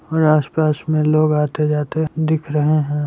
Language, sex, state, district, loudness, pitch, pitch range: Hindi, male, Bihar, Muzaffarpur, -18 LUFS, 155 Hz, 150-155 Hz